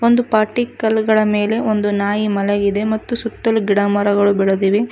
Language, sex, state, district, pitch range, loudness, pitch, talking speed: Kannada, female, Karnataka, Koppal, 205-220 Hz, -16 LUFS, 210 Hz, 145 wpm